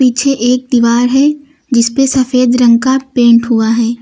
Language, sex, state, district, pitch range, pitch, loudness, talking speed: Hindi, female, Uttar Pradesh, Lucknow, 235-270 Hz, 250 Hz, -10 LUFS, 180 wpm